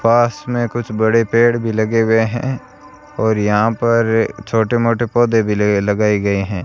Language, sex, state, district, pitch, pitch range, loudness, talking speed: Hindi, male, Rajasthan, Bikaner, 115 Hz, 110-120 Hz, -16 LUFS, 170 wpm